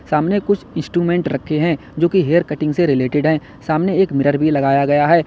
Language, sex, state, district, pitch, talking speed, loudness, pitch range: Hindi, male, Uttar Pradesh, Lalitpur, 155 Hz, 205 wpm, -17 LUFS, 145-175 Hz